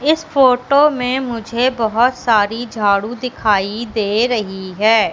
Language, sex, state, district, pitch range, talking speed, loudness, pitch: Hindi, female, Madhya Pradesh, Katni, 215-255 Hz, 130 wpm, -16 LUFS, 230 Hz